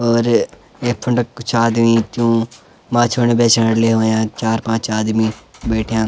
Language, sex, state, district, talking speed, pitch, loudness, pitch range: Garhwali, male, Uttarakhand, Uttarkashi, 140 wpm, 115 Hz, -16 LUFS, 110-120 Hz